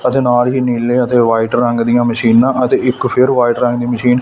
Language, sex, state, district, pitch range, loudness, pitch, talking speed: Punjabi, male, Punjab, Fazilka, 120-125 Hz, -13 LUFS, 120 Hz, 240 wpm